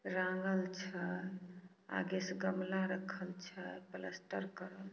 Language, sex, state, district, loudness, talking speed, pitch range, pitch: Hindi, female, Bihar, Samastipur, -41 LUFS, 110 wpm, 185-190 Hz, 185 Hz